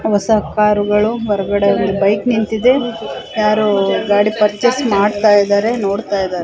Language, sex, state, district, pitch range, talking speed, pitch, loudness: Kannada, female, Karnataka, Raichur, 200-220 Hz, 120 wpm, 210 Hz, -14 LUFS